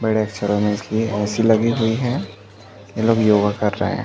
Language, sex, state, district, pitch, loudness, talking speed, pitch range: Hindi, male, Chhattisgarh, Bastar, 105 Hz, -19 LUFS, 220 wpm, 105-110 Hz